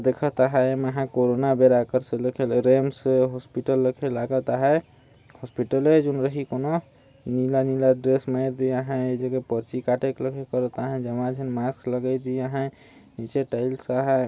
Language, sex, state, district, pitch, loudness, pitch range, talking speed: Sadri, male, Chhattisgarh, Jashpur, 130 Hz, -24 LUFS, 125-135 Hz, 115 wpm